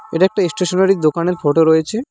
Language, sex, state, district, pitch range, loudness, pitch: Bengali, male, West Bengal, Cooch Behar, 160-190 Hz, -15 LUFS, 180 Hz